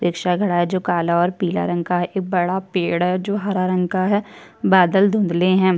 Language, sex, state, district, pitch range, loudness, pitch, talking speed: Hindi, female, Chhattisgarh, Kabirdham, 175-190 Hz, -19 LUFS, 185 Hz, 230 wpm